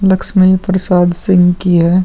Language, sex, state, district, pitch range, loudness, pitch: Hindi, male, Bihar, Vaishali, 175-190 Hz, -11 LUFS, 185 Hz